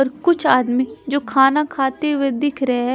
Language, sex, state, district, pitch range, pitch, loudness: Hindi, female, Haryana, Charkhi Dadri, 260-290 Hz, 270 Hz, -18 LUFS